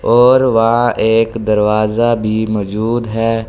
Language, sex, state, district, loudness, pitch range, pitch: Hindi, male, Delhi, New Delhi, -13 LUFS, 110-115 Hz, 115 Hz